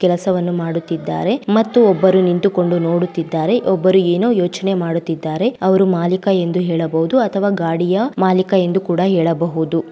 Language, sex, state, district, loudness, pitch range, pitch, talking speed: Kannada, female, Karnataka, Raichur, -16 LUFS, 170-190 Hz, 180 Hz, 115 wpm